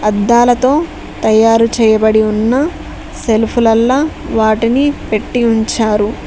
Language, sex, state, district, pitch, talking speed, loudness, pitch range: Telugu, female, Telangana, Mahabubabad, 225 Hz, 85 wpm, -12 LUFS, 220-245 Hz